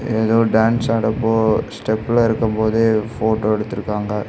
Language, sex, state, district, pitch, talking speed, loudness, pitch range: Tamil, male, Tamil Nadu, Kanyakumari, 110 Hz, 110 wpm, -18 LUFS, 110-115 Hz